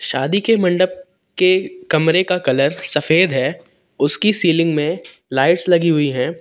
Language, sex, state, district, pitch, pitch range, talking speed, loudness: Hindi, male, Madhya Pradesh, Katni, 170 Hz, 150-185 Hz, 150 wpm, -16 LUFS